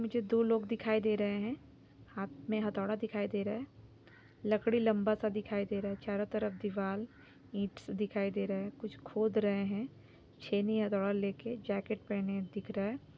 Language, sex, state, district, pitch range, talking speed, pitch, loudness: Hindi, female, Jharkhand, Sahebganj, 200-220 Hz, 185 wpm, 210 Hz, -35 LUFS